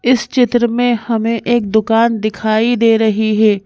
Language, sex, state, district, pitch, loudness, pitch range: Hindi, female, Madhya Pradesh, Bhopal, 225 Hz, -14 LUFS, 220-240 Hz